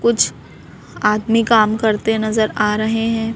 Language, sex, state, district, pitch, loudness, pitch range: Hindi, female, Madhya Pradesh, Bhopal, 220 Hz, -17 LUFS, 215-225 Hz